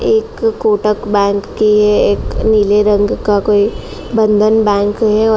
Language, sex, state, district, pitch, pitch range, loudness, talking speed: Hindi, female, Uttar Pradesh, Jalaun, 210 Hz, 205-220 Hz, -13 LUFS, 135 wpm